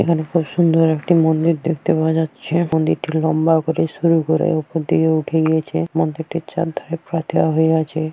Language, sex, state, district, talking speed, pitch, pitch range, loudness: Bengali, female, West Bengal, Paschim Medinipur, 175 wpm, 160 Hz, 160-165 Hz, -18 LUFS